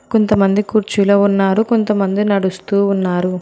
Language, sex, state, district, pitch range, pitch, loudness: Telugu, female, Telangana, Hyderabad, 195-210 Hz, 200 Hz, -15 LUFS